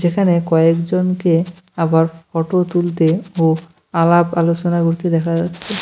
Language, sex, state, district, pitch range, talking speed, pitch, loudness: Bengali, male, West Bengal, Cooch Behar, 165-175 Hz, 115 wpm, 170 Hz, -16 LUFS